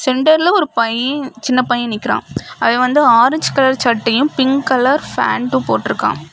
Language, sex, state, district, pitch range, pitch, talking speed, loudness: Tamil, female, Tamil Nadu, Kanyakumari, 240-275 Hz, 260 Hz, 150 wpm, -14 LUFS